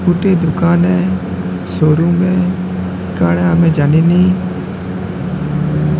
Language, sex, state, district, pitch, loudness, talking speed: Odia, male, Odisha, Sambalpur, 155 Hz, -14 LUFS, 80 wpm